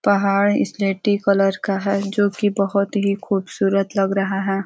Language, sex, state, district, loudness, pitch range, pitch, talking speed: Hindi, female, Uttar Pradesh, Ghazipur, -19 LUFS, 195-200 Hz, 200 Hz, 140 wpm